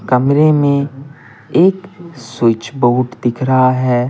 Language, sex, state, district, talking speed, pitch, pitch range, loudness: Hindi, male, Bihar, Patna, 115 wpm, 130 Hz, 125-145 Hz, -14 LUFS